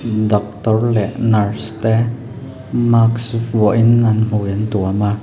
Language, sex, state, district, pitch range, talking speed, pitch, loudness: Mizo, male, Mizoram, Aizawl, 105-115 Hz, 125 wpm, 110 Hz, -16 LUFS